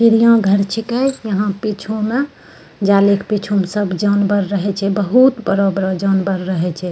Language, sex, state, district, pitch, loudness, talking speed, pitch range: Angika, female, Bihar, Bhagalpur, 200 Hz, -16 LUFS, 155 wpm, 195-215 Hz